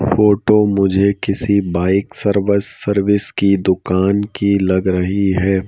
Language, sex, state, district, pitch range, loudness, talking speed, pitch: Hindi, male, Madhya Pradesh, Bhopal, 95-100 Hz, -15 LUFS, 125 wpm, 100 Hz